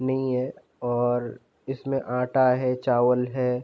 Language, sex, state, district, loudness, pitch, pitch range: Hindi, male, Uttar Pradesh, Jalaun, -25 LUFS, 125 Hz, 125-130 Hz